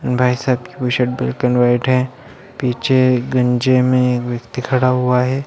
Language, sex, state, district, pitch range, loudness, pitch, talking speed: Hindi, male, Bihar, Bhagalpur, 125-130 Hz, -16 LUFS, 125 Hz, 195 wpm